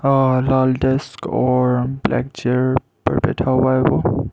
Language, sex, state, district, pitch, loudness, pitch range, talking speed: Hindi, male, Arunachal Pradesh, Lower Dibang Valley, 130 Hz, -18 LUFS, 130-135 Hz, 150 wpm